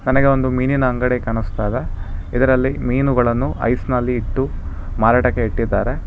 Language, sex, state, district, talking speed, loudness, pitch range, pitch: Kannada, male, Karnataka, Bangalore, 130 wpm, -18 LUFS, 110-130 Hz, 125 Hz